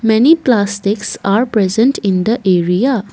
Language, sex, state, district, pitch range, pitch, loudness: English, female, Assam, Kamrup Metropolitan, 195-240 Hz, 215 Hz, -13 LUFS